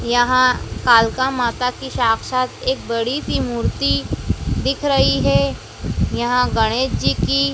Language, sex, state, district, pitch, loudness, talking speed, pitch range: Hindi, female, Madhya Pradesh, Dhar, 240 Hz, -18 LUFS, 125 wpm, 160-255 Hz